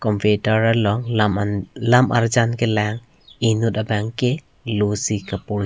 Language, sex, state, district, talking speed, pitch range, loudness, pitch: Karbi, male, Assam, Karbi Anglong, 115 wpm, 105-120 Hz, -20 LUFS, 110 Hz